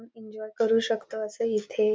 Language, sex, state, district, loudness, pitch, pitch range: Marathi, female, Maharashtra, Nagpur, -27 LUFS, 220 Hz, 215-225 Hz